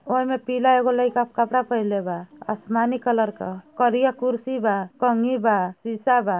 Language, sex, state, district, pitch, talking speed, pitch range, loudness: Bhojpuri, female, Uttar Pradesh, Ghazipur, 240 Hz, 160 wpm, 215-250 Hz, -22 LUFS